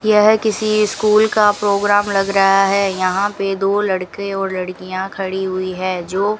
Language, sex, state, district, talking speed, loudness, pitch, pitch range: Hindi, female, Rajasthan, Bikaner, 180 wpm, -16 LUFS, 195 Hz, 190-205 Hz